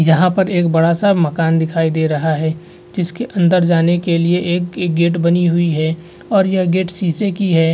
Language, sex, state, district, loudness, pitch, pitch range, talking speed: Hindi, male, Bihar, Vaishali, -15 LUFS, 175 Hz, 165-180 Hz, 195 wpm